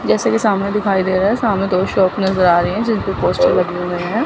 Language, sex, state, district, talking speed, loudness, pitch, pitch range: Hindi, female, Chandigarh, Chandigarh, 265 wpm, -16 LUFS, 190 Hz, 180-210 Hz